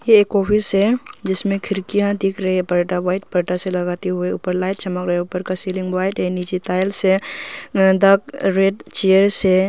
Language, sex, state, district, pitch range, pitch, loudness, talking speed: Hindi, female, Arunachal Pradesh, Longding, 180-200 Hz, 190 Hz, -18 LUFS, 190 wpm